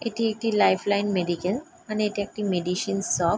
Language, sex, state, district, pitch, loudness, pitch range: Bengali, female, West Bengal, Jalpaiguri, 205 Hz, -25 LUFS, 185-215 Hz